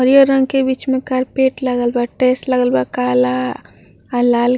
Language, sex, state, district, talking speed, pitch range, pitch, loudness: Bhojpuri, female, Bihar, Gopalganj, 210 wpm, 240-260 Hz, 255 Hz, -16 LUFS